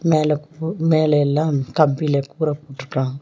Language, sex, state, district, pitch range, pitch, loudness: Tamil, female, Tamil Nadu, Nilgiris, 140-155 Hz, 150 Hz, -20 LUFS